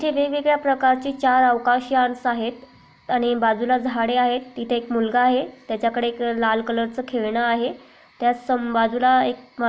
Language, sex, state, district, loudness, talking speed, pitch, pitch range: Marathi, female, Maharashtra, Aurangabad, -21 LUFS, 150 wpm, 245 Hz, 235-255 Hz